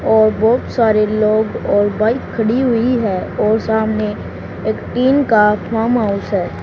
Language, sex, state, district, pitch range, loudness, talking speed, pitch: Hindi, male, Haryana, Charkhi Dadri, 215-230 Hz, -15 LUFS, 155 wpm, 220 Hz